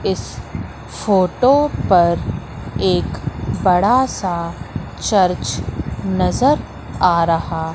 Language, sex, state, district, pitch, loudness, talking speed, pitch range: Hindi, female, Madhya Pradesh, Katni, 170 Hz, -17 LUFS, 75 wpm, 160-190 Hz